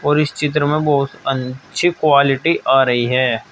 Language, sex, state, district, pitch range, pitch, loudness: Hindi, male, Uttar Pradesh, Saharanpur, 135-150 Hz, 140 Hz, -16 LUFS